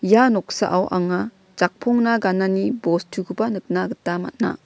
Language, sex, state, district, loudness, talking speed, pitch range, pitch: Garo, female, Meghalaya, West Garo Hills, -21 LUFS, 115 wpm, 180-225 Hz, 190 Hz